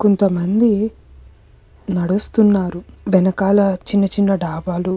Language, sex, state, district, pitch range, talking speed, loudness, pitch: Telugu, female, Andhra Pradesh, Krishna, 180-205 Hz, 95 wpm, -17 LUFS, 195 Hz